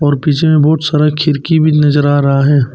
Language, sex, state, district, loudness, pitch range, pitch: Hindi, male, Arunachal Pradesh, Papum Pare, -11 LUFS, 145-155 Hz, 150 Hz